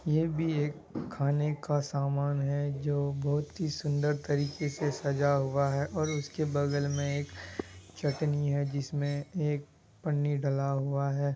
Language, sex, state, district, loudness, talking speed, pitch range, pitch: Hindi, male, Bihar, Kishanganj, -31 LUFS, 155 wpm, 140-150 Hz, 145 Hz